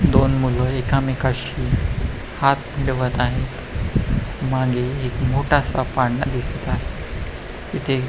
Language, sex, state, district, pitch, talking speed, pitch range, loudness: Marathi, male, Maharashtra, Pune, 130 Hz, 95 wpm, 125-135 Hz, -22 LUFS